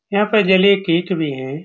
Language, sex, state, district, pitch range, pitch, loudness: Hindi, male, Bihar, Saran, 160-200 Hz, 185 Hz, -16 LUFS